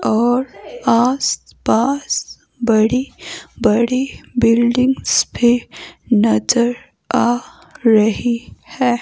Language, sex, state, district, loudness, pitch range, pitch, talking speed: Hindi, female, Himachal Pradesh, Shimla, -16 LUFS, 230-255 Hz, 240 Hz, 65 wpm